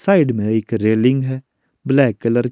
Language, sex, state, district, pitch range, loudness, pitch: Hindi, male, Himachal Pradesh, Shimla, 110-135 Hz, -17 LUFS, 120 Hz